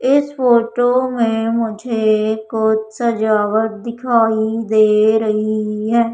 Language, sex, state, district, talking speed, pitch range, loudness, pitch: Hindi, female, Madhya Pradesh, Umaria, 100 wpm, 215-235 Hz, -16 LUFS, 225 Hz